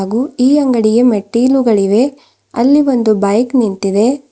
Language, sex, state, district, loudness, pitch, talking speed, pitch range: Kannada, female, Karnataka, Bidar, -12 LUFS, 240 Hz, 110 wpm, 215-265 Hz